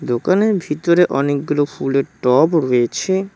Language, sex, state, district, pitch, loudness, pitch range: Bengali, male, West Bengal, Cooch Behar, 150 Hz, -17 LUFS, 135-175 Hz